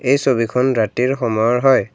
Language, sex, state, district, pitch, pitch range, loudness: Assamese, male, Assam, Kamrup Metropolitan, 125 Hz, 115-130 Hz, -17 LUFS